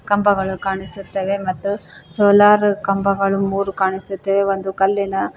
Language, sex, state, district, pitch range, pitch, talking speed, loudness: Kannada, female, Karnataka, Koppal, 195-200 Hz, 195 Hz, 100 wpm, -18 LUFS